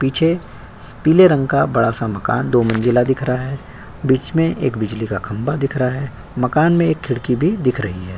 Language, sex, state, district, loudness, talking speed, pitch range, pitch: Hindi, male, Uttar Pradesh, Jyotiba Phule Nagar, -17 LUFS, 205 wpm, 115-145 Hz, 130 Hz